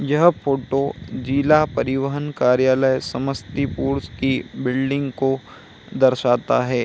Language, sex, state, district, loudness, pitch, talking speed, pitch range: Hindi, male, Bihar, Samastipur, -20 LUFS, 135 Hz, 95 wpm, 125-140 Hz